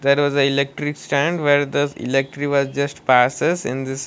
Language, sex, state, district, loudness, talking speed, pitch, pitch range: English, male, Odisha, Malkangiri, -19 LUFS, 190 wpm, 140 Hz, 135-145 Hz